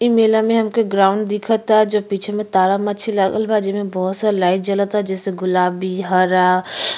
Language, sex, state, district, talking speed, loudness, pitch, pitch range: Bhojpuri, female, Uttar Pradesh, Ghazipur, 180 wpm, -17 LUFS, 200 Hz, 190-215 Hz